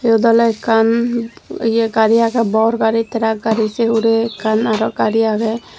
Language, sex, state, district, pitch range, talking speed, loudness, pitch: Chakma, female, Tripura, Dhalai, 220-230 Hz, 165 wpm, -15 LUFS, 225 Hz